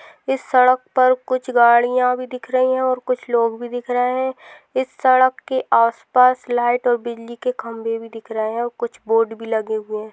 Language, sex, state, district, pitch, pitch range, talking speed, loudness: Hindi, female, Rajasthan, Nagaur, 245 Hz, 230-255 Hz, 220 wpm, -19 LUFS